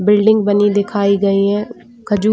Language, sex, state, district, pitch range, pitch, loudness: Hindi, female, Chhattisgarh, Bilaspur, 200-215 Hz, 205 Hz, -14 LUFS